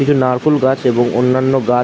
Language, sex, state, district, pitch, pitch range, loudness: Bengali, male, West Bengal, Dakshin Dinajpur, 130 Hz, 125-135 Hz, -14 LUFS